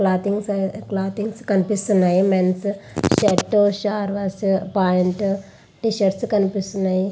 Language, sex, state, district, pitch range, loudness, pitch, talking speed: Telugu, female, Andhra Pradesh, Visakhapatnam, 190-205 Hz, -20 LUFS, 195 Hz, 95 wpm